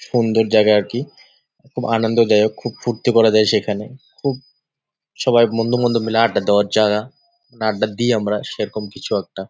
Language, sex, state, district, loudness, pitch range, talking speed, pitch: Bengali, male, West Bengal, Jalpaiguri, -18 LUFS, 110-125 Hz, 165 wpm, 115 Hz